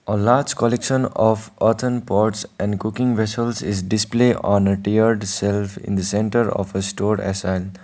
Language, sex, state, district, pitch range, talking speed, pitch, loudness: English, male, Sikkim, Gangtok, 100-115 Hz, 170 wpm, 105 Hz, -20 LUFS